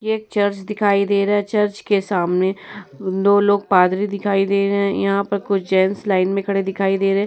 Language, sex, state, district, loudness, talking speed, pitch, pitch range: Hindi, female, Uttar Pradesh, Muzaffarnagar, -18 LUFS, 225 wpm, 200 Hz, 195-205 Hz